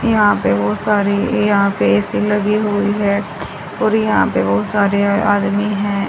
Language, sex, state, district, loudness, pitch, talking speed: Hindi, female, Haryana, Rohtak, -16 LUFS, 200 Hz, 170 wpm